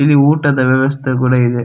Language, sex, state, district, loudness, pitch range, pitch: Kannada, male, Karnataka, Dakshina Kannada, -13 LUFS, 125-145 Hz, 130 Hz